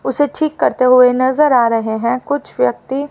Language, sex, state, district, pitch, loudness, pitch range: Hindi, female, Haryana, Rohtak, 255 Hz, -14 LUFS, 235-285 Hz